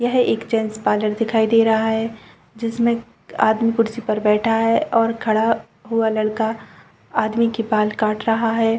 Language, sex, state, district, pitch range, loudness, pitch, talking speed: Hindi, female, Chhattisgarh, Bastar, 220-230 Hz, -19 LUFS, 225 Hz, 165 wpm